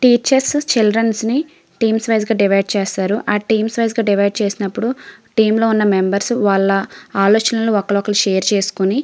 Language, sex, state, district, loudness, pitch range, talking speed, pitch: Telugu, female, Andhra Pradesh, Srikakulam, -16 LUFS, 200-225 Hz, 140 wpm, 215 Hz